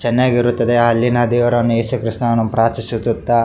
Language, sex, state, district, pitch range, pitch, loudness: Kannada, male, Karnataka, Raichur, 115-120 Hz, 120 Hz, -16 LUFS